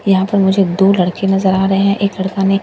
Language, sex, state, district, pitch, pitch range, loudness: Hindi, female, Bihar, Katihar, 195 Hz, 190-195 Hz, -14 LUFS